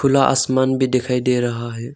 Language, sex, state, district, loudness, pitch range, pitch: Hindi, male, Arunachal Pradesh, Longding, -18 LUFS, 120-130 Hz, 130 Hz